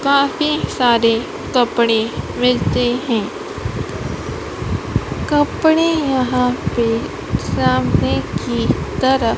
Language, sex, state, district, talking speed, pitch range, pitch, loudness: Hindi, female, Madhya Pradesh, Dhar, 70 wpm, 235-280 Hz, 250 Hz, -18 LUFS